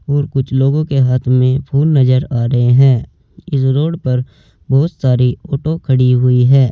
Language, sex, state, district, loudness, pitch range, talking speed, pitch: Hindi, male, Uttar Pradesh, Saharanpur, -13 LUFS, 125-145 Hz, 180 wpm, 135 Hz